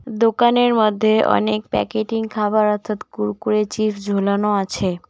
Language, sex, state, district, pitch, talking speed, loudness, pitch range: Bengali, female, West Bengal, Cooch Behar, 215 Hz, 120 wpm, -19 LUFS, 205-220 Hz